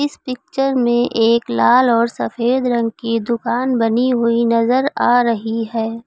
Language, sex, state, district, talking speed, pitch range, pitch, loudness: Hindi, female, Uttar Pradesh, Lucknow, 150 wpm, 230-250 Hz, 235 Hz, -16 LUFS